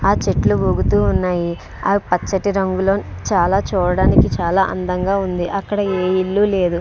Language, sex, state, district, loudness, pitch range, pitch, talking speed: Telugu, female, Andhra Pradesh, Srikakulam, -17 LUFS, 170-195 Hz, 185 Hz, 150 wpm